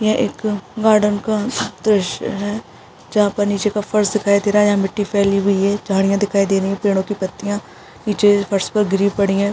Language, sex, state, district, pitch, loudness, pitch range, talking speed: Hindi, female, Bihar, East Champaran, 205 Hz, -18 LUFS, 200-210 Hz, 215 wpm